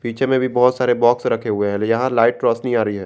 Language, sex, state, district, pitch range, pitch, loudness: Hindi, male, Jharkhand, Garhwa, 115-125 Hz, 120 Hz, -17 LUFS